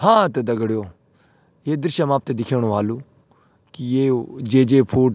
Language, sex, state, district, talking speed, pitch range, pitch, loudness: Garhwali, male, Uttarakhand, Tehri Garhwal, 175 wpm, 115-150 Hz, 130 Hz, -20 LUFS